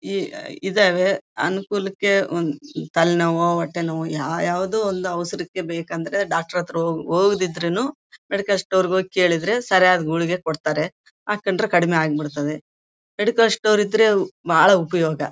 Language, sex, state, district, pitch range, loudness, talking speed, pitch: Kannada, female, Karnataka, Bellary, 165-200 Hz, -20 LUFS, 115 wpm, 180 Hz